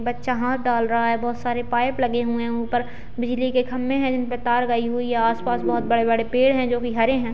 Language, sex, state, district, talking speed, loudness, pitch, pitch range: Hindi, female, Bihar, Jahanabad, 245 wpm, -22 LUFS, 240 Hz, 235-250 Hz